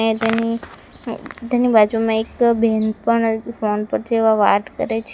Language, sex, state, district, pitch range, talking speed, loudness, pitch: Gujarati, female, Gujarat, Valsad, 220-230 Hz, 150 wpm, -18 LUFS, 225 Hz